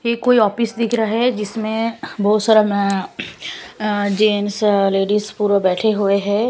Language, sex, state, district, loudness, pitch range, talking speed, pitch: Hindi, female, Punjab, Kapurthala, -17 LUFS, 205-225 Hz, 155 wpm, 210 Hz